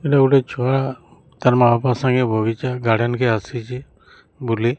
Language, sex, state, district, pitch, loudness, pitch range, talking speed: Odia, male, Odisha, Sambalpur, 125 Hz, -18 LUFS, 120-130 Hz, 150 wpm